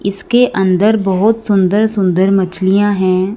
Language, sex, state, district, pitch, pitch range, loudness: Hindi, female, Punjab, Fazilka, 195 Hz, 190-215 Hz, -13 LUFS